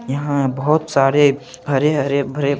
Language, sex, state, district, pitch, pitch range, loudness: Hindi, male, Chandigarh, Chandigarh, 140 Hz, 135-145 Hz, -17 LUFS